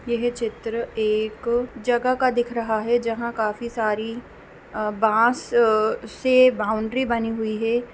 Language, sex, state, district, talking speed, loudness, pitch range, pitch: Hindi, female, Bihar, East Champaran, 135 wpm, -22 LUFS, 220-240 Hz, 230 Hz